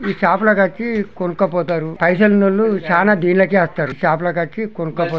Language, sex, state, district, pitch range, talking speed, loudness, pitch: Telugu, male, Telangana, Nalgonda, 170-205 Hz, 125 wpm, -16 LUFS, 185 Hz